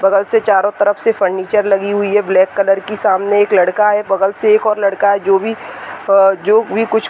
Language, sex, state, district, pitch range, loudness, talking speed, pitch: Hindi, female, Uttar Pradesh, Deoria, 195-210 Hz, -13 LUFS, 255 wpm, 200 Hz